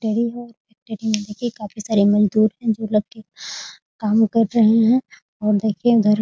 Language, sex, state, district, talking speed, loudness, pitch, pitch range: Hindi, female, Bihar, Muzaffarpur, 185 wpm, -19 LUFS, 220 Hz, 210-230 Hz